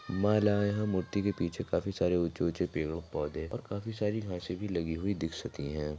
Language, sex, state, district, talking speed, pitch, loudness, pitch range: Hindi, female, Maharashtra, Aurangabad, 210 wpm, 95 Hz, -33 LUFS, 85-105 Hz